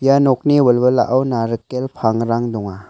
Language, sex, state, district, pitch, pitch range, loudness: Garo, male, Meghalaya, West Garo Hills, 125 Hz, 115-135 Hz, -16 LUFS